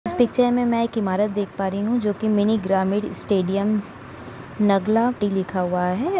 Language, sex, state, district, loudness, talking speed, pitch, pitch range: Hindi, female, Uttar Pradesh, Etah, -22 LUFS, 185 wpm, 205 Hz, 190-220 Hz